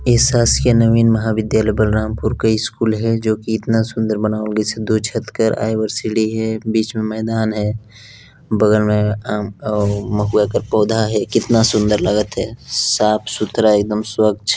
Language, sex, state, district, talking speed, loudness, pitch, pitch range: Hindi, male, Chhattisgarh, Balrampur, 170 wpm, -17 LUFS, 110 Hz, 105-110 Hz